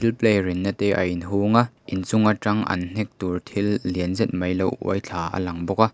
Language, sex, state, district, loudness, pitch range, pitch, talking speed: Mizo, male, Mizoram, Aizawl, -23 LUFS, 90-110 Hz, 100 Hz, 240 wpm